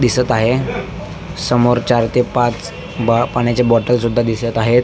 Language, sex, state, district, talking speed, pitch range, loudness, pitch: Marathi, male, Maharashtra, Nagpur, 150 wpm, 115-125 Hz, -16 LUFS, 120 Hz